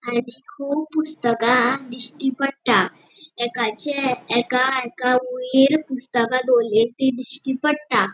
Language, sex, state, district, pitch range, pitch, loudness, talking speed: Konkani, female, Goa, North and South Goa, 240-275 Hz, 255 Hz, -21 LUFS, 105 wpm